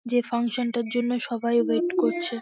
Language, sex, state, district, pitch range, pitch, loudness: Bengali, female, West Bengal, North 24 Parganas, 235-245 Hz, 240 Hz, -25 LUFS